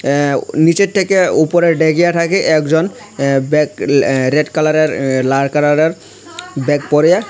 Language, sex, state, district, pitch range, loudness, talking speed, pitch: Bengali, male, Tripura, Unakoti, 145-175 Hz, -13 LUFS, 125 wpm, 155 Hz